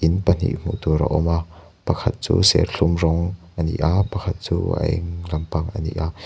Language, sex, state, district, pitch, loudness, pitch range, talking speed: Mizo, male, Mizoram, Aizawl, 85 Hz, -21 LUFS, 80-95 Hz, 190 wpm